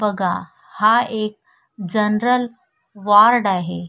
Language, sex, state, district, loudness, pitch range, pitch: Marathi, female, Maharashtra, Sindhudurg, -17 LUFS, 200-240 Hz, 210 Hz